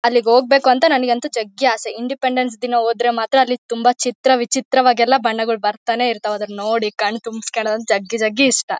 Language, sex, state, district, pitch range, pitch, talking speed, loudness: Kannada, female, Karnataka, Bellary, 225-255 Hz, 235 Hz, 155 wpm, -17 LUFS